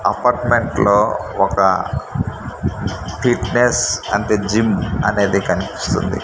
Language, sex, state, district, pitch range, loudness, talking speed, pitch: Telugu, male, Andhra Pradesh, Manyam, 100-120 Hz, -17 LUFS, 75 wpm, 105 Hz